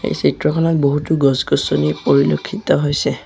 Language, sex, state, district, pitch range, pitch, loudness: Assamese, male, Assam, Sonitpur, 135-155 Hz, 145 Hz, -16 LUFS